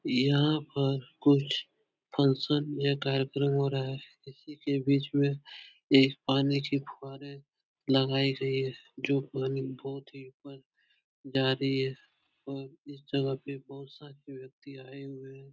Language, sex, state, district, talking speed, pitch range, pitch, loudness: Hindi, male, Uttar Pradesh, Etah, 145 wpm, 135-140 Hz, 135 Hz, -29 LUFS